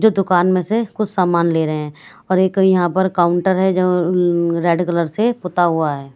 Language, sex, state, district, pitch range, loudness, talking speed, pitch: Hindi, female, Bihar, Katihar, 170-190 Hz, -16 LUFS, 225 wpm, 180 Hz